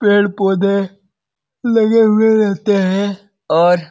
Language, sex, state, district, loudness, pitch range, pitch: Hindi, male, Bihar, Lakhisarai, -14 LUFS, 190-210 Hz, 200 Hz